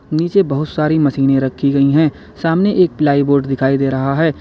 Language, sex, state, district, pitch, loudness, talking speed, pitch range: Hindi, male, Uttar Pradesh, Lalitpur, 145 Hz, -15 LUFS, 190 wpm, 135-160 Hz